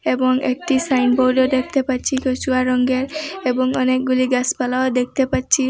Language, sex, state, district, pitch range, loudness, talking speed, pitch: Bengali, female, Assam, Hailakandi, 255-265 Hz, -18 LUFS, 125 wpm, 255 Hz